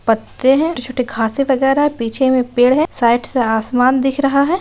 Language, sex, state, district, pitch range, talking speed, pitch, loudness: Hindi, female, Bihar, Kishanganj, 245-275 Hz, 235 wpm, 260 Hz, -15 LUFS